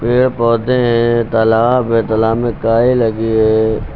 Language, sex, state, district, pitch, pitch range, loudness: Hindi, male, Uttar Pradesh, Lucknow, 115 Hz, 110-120 Hz, -13 LUFS